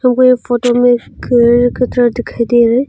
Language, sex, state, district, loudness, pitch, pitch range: Hindi, female, Arunachal Pradesh, Longding, -12 LUFS, 245 Hz, 240-250 Hz